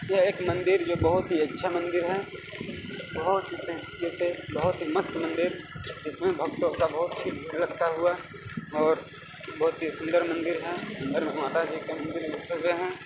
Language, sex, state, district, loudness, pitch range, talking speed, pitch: Hindi, male, Chhattisgarh, Balrampur, -29 LUFS, 165-185 Hz, 150 wpm, 175 Hz